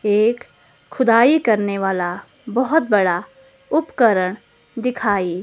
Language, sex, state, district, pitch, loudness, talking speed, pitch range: Hindi, female, Himachal Pradesh, Shimla, 220 Hz, -18 LUFS, 90 wpm, 190-255 Hz